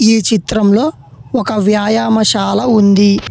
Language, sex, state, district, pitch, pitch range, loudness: Telugu, male, Telangana, Hyderabad, 220 Hz, 205-225 Hz, -12 LUFS